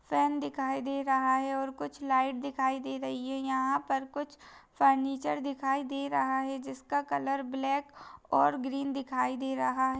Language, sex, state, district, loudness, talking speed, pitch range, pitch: Hindi, female, Uttarakhand, Tehri Garhwal, -31 LUFS, 175 wpm, 260-275 Hz, 270 Hz